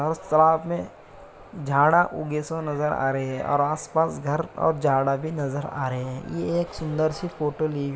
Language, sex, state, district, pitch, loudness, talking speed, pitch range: Hindi, male, Uttar Pradesh, Muzaffarnagar, 150 Hz, -24 LUFS, 190 wpm, 140-160 Hz